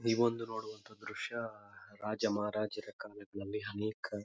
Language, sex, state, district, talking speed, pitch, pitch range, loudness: Kannada, male, Karnataka, Bijapur, 115 wpm, 110 Hz, 105-115 Hz, -39 LUFS